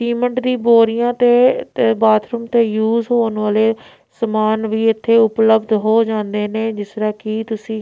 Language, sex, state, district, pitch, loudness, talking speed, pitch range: Punjabi, female, Punjab, Pathankot, 225 Hz, -16 LUFS, 155 wpm, 215-235 Hz